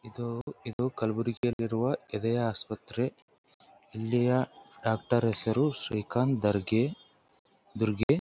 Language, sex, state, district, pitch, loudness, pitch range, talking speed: Kannada, male, Karnataka, Gulbarga, 115 Hz, -30 LUFS, 110-125 Hz, 85 wpm